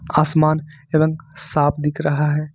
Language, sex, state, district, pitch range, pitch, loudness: Hindi, male, Jharkhand, Ranchi, 150-155 Hz, 150 Hz, -19 LUFS